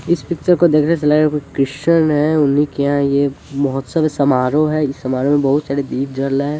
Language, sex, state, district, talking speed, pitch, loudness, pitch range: Hindi, male, Bihar, Sitamarhi, 255 wpm, 145 Hz, -16 LUFS, 140-155 Hz